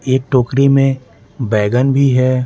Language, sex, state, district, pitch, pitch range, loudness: Hindi, male, Bihar, Patna, 130 Hz, 125-135 Hz, -13 LUFS